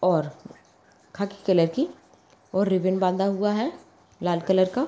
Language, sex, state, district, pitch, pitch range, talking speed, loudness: Magahi, female, Bihar, Gaya, 190 Hz, 180-210 Hz, 150 wpm, -25 LUFS